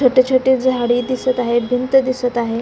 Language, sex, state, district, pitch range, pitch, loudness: Marathi, female, Maharashtra, Solapur, 245-260 Hz, 255 Hz, -16 LUFS